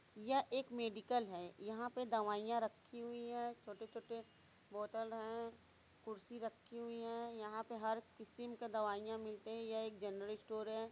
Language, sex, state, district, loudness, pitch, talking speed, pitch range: Hindi, female, Uttar Pradesh, Varanasi, -45 LUFS, 225 Hz, 170 wpm, 215-235 Hz